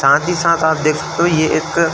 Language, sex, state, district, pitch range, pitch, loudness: Hindi, male, Uttar Pradesh, Varanasi, 155-170 Hz, 160 Hz, -15 LUFS